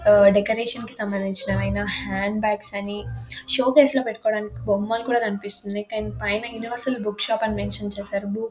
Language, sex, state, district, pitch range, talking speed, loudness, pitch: Telugu, female, Telangana, Nalgonda, 200-225 Hz, 170 wpm, -23 LUFS, 210 Hz